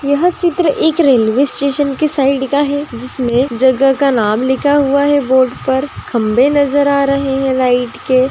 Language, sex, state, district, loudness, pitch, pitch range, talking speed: Hindi, female, Andhra Pradesh, Anantapur, -13 LUFS, 275 Hz, 255-285 Hz, 180 wpm